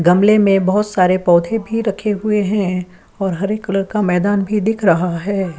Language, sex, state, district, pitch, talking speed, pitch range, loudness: Hindi, female, Uttar Pradesh, Jyotiba Phule Nagar, 195 Hz, 195 wpm, 185-210 Hz, -16 LUFS